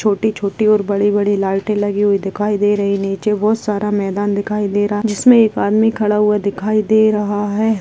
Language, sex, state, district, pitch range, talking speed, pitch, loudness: Hindi, female, Rajasthan, Churu, 200-215 Hz, 205 wpm, 205 Hz, -16 LUFS